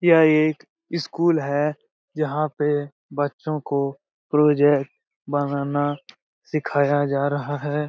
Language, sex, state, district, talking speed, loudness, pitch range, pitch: Hindi, male, Bihar, Lakhisarai, 105 wpm, -22 LUFS, 145-155 Hz, 145 Hz